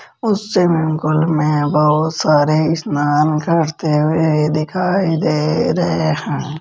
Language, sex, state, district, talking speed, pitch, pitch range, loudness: Hindi, male, Rajasthan, Jaipur, 110 wpm, 155 Hz, 150-165 Hz, -16 LUFS